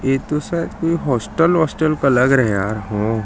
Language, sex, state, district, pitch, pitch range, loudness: Hindi, male, Chhattisgarh, Jashpur, 135 Hz, 110-160 Hz, -18 LUFS